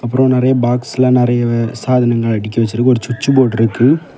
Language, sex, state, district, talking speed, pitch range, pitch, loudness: Tamil, male, Tamil Nadu, Kanyakumari, 160 wpm, 115-130 Hz, 120 Hz, -13 LUFS